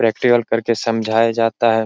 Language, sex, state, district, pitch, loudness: Hindi, male, Bihar, Jahanabad, 115 Hz, -17 LUFS